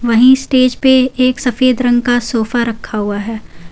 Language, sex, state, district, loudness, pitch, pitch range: Hindi, female, Jharkhand, Garhwa, -13 LUFS, 245 Hz, 225-255 Hz